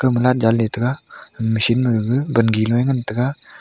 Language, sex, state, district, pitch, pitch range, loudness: Wancho, male, Arunachal Pradesh, Longding, 120 Hz, 115-125 Hz, -18 LUFS